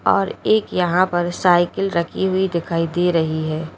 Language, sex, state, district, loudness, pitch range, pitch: Hindi, female, Uttar Pradesh, Lalitpur, -19 LUFS, 165-185 Hz, 175 Hz